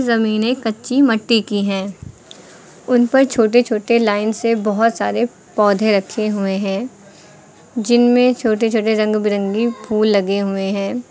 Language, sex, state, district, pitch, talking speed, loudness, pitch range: Hindi, female, Uttar Pradesh, Lucknow, 220 Hz, 140 wpm, -16 LUFS, 205-235 Hz